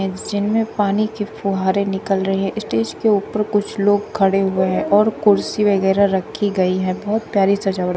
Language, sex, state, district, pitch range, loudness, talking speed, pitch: Hindi, female, Uttar Pradesh, Shamli, 195-210 Hz, -18 LUFS, 175 wpm, 200 Hz